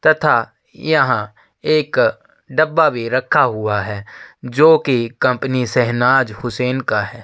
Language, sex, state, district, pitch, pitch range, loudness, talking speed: Hindi, male, Uttar Pradesh, Jyotiba Phule Nagar, 125 Hz, 115-135 Hz, -16 LUFS, 115 wpm